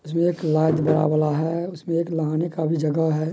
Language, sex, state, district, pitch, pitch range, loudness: Maithili, male, Bihar, Madhepura, 160 Hz, 155-165 Hz, -22 LUFS